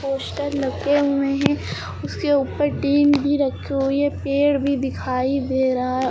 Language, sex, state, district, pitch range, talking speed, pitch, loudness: Hindi, female, Uttar Pradesh, Lucknow, 270-285 Hz, 175 wpm, 280 Hz, -21 LUFS